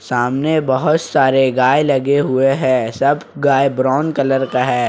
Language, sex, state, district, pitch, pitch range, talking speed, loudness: Hindi, male, Jharkhand, Ranchi, 135 Hz, 130-145 Hz, 160 wpm, -15 LUFS